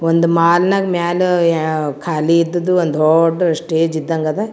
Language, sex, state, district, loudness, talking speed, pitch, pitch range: Kannada, female, Karnataka, Gulbarga, -15 LUFS, 160 wpm, 165 Hz, 160-175 Hz